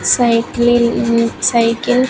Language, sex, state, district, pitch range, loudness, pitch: English, female, Andhra Pradesh, Sri Satya Sai, 230-240 Hz, -14 LUFS, 235 Hz